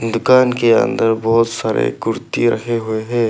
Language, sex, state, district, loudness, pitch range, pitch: Hindi, male, Arunachal Pradesh, Papum Pare, -16 LUFS, 115-120 Hz, 115 Hz